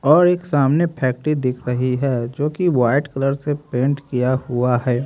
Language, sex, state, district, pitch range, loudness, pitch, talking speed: Hindi, male, Haryana, Jhajjar, 125-150 Hz, -19 LUFS, 135 Hz, 190 wpm